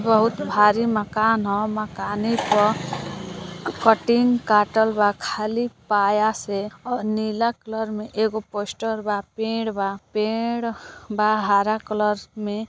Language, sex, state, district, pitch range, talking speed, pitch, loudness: Bhojpuri, female, Uttar Pradesh, Deoria, 205-225 Hz, 125 wpm, 215 Hz, -22 LUFS